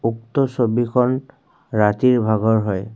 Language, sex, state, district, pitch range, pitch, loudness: Assamese, male, Assam, Kamrup Metropolitan, 110-125 Hz, 115 Hz, -19 LUFS